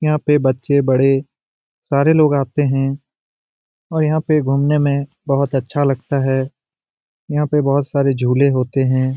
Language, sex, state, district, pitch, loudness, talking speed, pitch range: Hindi, male, Bihar, Jamui, 140 Hz, -17 LUFS, 150 wpm, 135-150 Hz